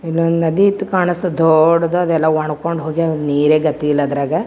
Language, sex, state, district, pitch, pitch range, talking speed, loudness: Kannada, female, Karnataka, Gulbarga, 165 Hz, 155-170 Hz, 175 wpm, -15 LUFS